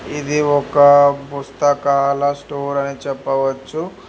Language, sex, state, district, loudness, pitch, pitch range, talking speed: Telugu, male, Telangana, Hyderabad, -16 LUFS, 140 Hz, 140-145 Hz, 90 wpm